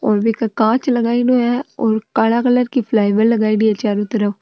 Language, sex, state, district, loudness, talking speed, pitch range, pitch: Marwari, female, Rajasthan, Nagaur, -16 LUFS, 175 wpm, 215-240 Hz, 225 Hz